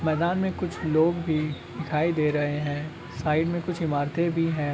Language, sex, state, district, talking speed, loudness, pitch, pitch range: Magahi, male, Bihar, Gaya, 190 wpm, -26 LUFS, 155 Hz, 150-170 Hz